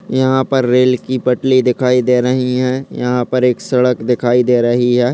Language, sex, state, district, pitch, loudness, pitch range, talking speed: Hindi, male, Uttar Pradesh, Ghazipur, 125 Hz, -14 LUFS, 125-130 Hz, 210 wpm